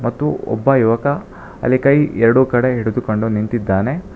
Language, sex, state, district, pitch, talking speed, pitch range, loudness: Kannada, male, Karnataka, Bangalore, 120 Hz, 130 wpm, 110-135 Hz, -16 LUFS